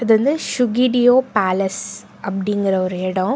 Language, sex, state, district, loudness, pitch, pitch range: Tamil, female, Karnataka, Bangalore, -18 LUFS, 210 Hz, 190-245 Hz